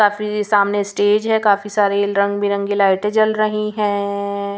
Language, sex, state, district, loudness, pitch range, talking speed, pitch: Hindi, female, Punjab, Pathankot, -17 LUFS, 200-210 Hz, 155 wpm, 205 Hz